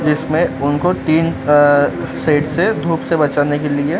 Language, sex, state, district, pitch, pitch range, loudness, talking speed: Hindi, male, Madhya Pradesh, Dhar, 150 Hz, 145-160 Hz, -15 LUFS, 165 wpm